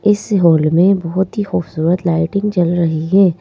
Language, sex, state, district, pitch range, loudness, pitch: Hindi, female, Madhya Pradesh, Bhopal, 165-195 Hz, -15 LUFS, 175 Hz